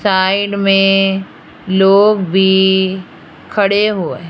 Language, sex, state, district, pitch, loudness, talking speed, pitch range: Hindi, female, Rajasthan, Jaipur, 195 Hz, -13 LUFS, 85 wpm, 190-200 Hz